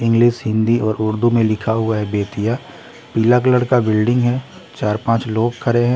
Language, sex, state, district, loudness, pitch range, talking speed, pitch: Hindi, male, Bihar, West Champaran, -17 LUFS, 110-120 Hz, 190 wpm, 115 Hz